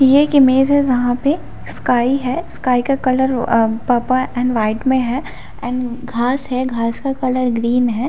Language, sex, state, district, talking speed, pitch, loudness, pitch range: Hindi, female, Chhattisgarh, Bilaspur, 190 wpm, 255 Hz, -17 LUFS, 245-265 Hz